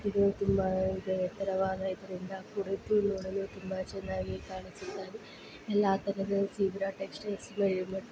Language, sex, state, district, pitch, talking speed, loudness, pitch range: Kannada, female, Karnataka, Dakshina Kannada, 195 Hz, 110 wpm, -33 LUFS, 190-200 Hz